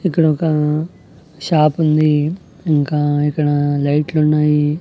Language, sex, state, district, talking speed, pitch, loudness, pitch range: Telugu, male, Andhra Pradesh, Annamaya, 100 wpm, 150 Hz, -16 LUFS, 150-155 Hz